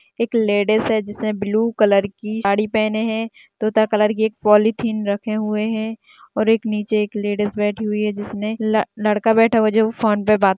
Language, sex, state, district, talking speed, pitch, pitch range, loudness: Hindi, female, Rajasthan, Nagaur, 200 wpm, 215 Hz, 210-220 Hz, -19 LUFS